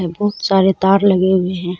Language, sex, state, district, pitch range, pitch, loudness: Hindi, female, Jharkhand, Deoghar, 180-195 Hz, 190 Hz, -14 LUFS